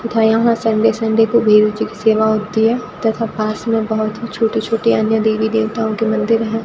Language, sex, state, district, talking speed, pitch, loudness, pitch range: Hindi, female, Rajasthan, Bikaner, 215 wpm, 220 Hz, -16 LUFS, 220-225 Hz